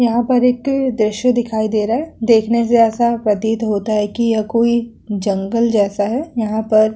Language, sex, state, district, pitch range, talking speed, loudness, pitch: Hindi, female, Uttar Pradesh, Hamirpur, 215-235 Hz, 200 wpm, -16 LUFS, 230 Hz